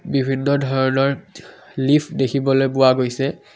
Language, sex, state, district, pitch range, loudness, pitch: Assamese, male, Assam, Kamrup Metropolitan, 130-140 Hz, -18 LUFS, 135 Hz